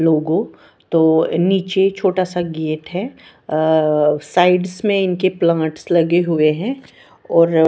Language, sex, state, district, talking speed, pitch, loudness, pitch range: Hindi, female, Bihar, Patna, 115 wpm, 170 Hz, -17 LUFS, 160-185 Hz